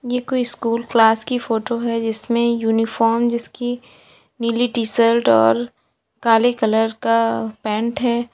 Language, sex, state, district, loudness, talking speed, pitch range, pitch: Hindi, female, Uttar Pradesh, Lalitpur, -18 LUFS, 135 wpm, 225-240 Hz, 230 Hz